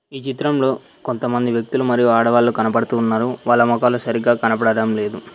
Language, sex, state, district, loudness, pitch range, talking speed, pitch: Telugu, male, Telangana, Mahabubabad, -18 LUFS, 115-125 Hz, 145 wpm, 120 Hz